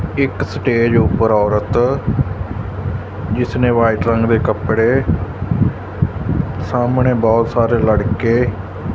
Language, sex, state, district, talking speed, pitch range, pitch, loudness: Punjabi, male, Punjab, Fazilka, 95 wpm, 100-120 Hz, 110 Hz, -16 LUFS